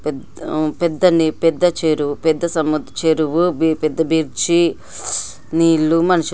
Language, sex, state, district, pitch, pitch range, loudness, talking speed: Telugu, female, Andhra Pradesh, Guntur, 160 Hz, 155-170 Hz, -17 LUFS, 55 wpm